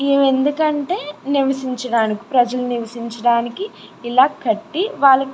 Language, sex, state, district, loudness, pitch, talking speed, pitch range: Telugu, female, Andhra Pradesh, Chittoor, -18 LUFS, 260 Hz, 90 wpm, 235-285 Hz